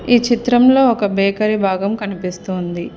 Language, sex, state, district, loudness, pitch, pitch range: Telugu, female, Telangana, Hyderabad, -16 LUFS, 205 Hz, 190-240 Hz